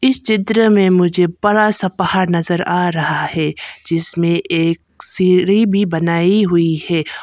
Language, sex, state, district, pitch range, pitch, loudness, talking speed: Hindi, female, Arunachal Pradesh, Papum Pare, 170-200 Hz, 180 Hz, -15 LUFS, 150 wpm